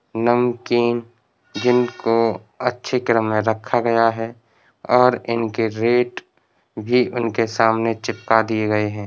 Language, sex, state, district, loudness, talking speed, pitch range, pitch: Hindi, male, Uttar Pradesh, Varanasi, -19 LUFS, 120 wpm, 110-120 Hz, 115 Hz